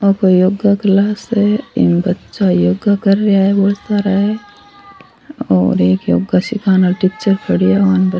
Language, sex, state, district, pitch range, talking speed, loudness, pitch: Rajasthani, female, Rajasthan, Churu, 175-205 Hz, 130 wpm, -13 LUFS, 195 Hz